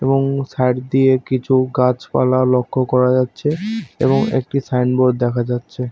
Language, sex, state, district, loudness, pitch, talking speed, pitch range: Bengali, male, West Bengal, Paschim Medinipur, -17 LUFS, 130 Hz, 140 wpm, 125-135 Hz